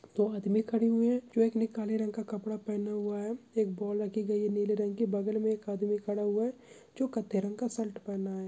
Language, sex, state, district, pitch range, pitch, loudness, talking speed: Hindi, male, Chhattisgarh, Kabirdham, 205-225 Hz, 215 Hz, -32 LUFS, 255 wpm